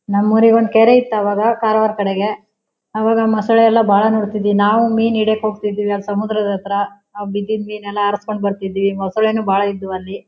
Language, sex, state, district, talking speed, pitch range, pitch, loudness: Kannada, female, Karnataka, Shimoga, 175 wpm, 200-220 Hz, 210 Hz, -16 LUFS